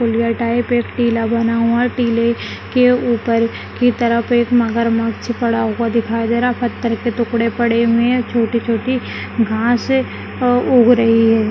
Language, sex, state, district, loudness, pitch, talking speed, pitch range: Hindi, female, Rajasthan, Nagaur, -16 LUFS, 235 Hz, 165 wpm, 230-240 Hz